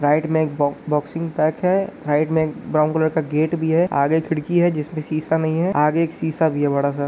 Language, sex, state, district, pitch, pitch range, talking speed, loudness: Hindi, male, Uttar Pradesh, Gorakhpur, 155 Hz, 150-160 Hz, 260 wpm, -20 LUFS